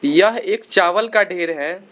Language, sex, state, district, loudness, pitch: Hindi, male, Arunachal Pradesh, Lower Dibang Valley, -17 LUFS, 215 Hz